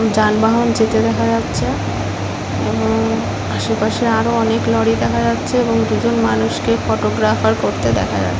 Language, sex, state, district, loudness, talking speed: Bengali, female, West Bengal, Paschim Medinipur, -16 LUFS, 130 wpm